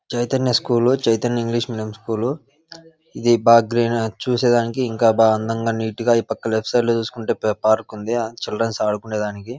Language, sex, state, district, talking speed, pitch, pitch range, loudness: Telugu, male, Andhra Pradesh, Visakhapatnam, 165 wpm, 115 Hz, 110-120 Hz, -19 LUFS